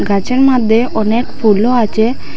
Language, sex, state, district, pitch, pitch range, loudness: Bengali, female, Assam, Hailakandi, 225 Hz, 220-250 Hz, -12 LUFS